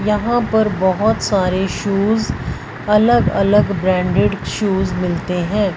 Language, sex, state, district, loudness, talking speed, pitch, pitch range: Hindi, female, Punjab, Fazilka, -17 LUFS, 115 wpm, 200 Hz, 185-210 Hz